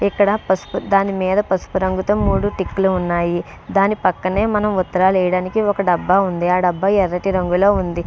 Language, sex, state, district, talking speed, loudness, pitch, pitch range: Telugu, female, Andhra Pradesh, Srikakulam, 185 wpm, -18 LUFS, 190 Hz, 180-200 Hz